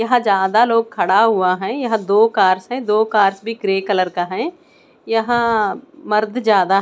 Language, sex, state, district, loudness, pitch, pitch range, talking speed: Hindi, female, Chandigarh, Chandigarh, -17 LUFS, 215 Hz, 195-230 Hz, 185 wpm